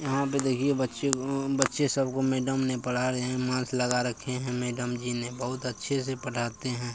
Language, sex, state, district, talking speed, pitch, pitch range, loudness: Maithili, male, Bihar, Bhagalpur, 225 wpm, 130 Hz, 125-135 Hz, -29 LUFS